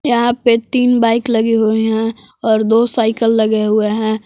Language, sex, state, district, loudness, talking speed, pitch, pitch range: Hindi, female, Jharkhand, Palamu, -14 LUFS, 185 wpm, 225 Hz, 220-235 Hz